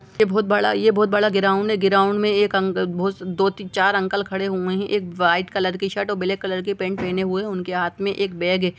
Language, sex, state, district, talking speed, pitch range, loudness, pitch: Hindi, female, Chhattisgarh, Sukma, 245 wpm, 185-200 Hz, -21 LUFS, 195 Hz